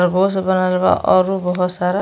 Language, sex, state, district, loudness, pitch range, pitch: Bhojpuri, female, Uttar Pradesh, Deoria, -16 LUFS, 180-190 Hz, 185 Hz